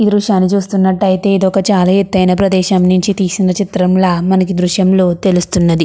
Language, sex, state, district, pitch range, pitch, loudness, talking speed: Telugu, female, Andhra Pradesh, Krishna, 185-195 Hz, 190 Hz, -12 LUFS, 185 wpm